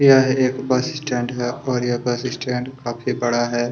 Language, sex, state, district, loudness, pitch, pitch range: Hindi, male, Chhattisgarh, Kabirdham, -21 LUFS, 125 Hz, 120-130 Hz